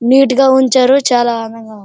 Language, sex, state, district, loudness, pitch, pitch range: Telugu, female, Andhra Pradesh, Srikakulam, -11 LUFS, 255 Hz, 230-265 Hz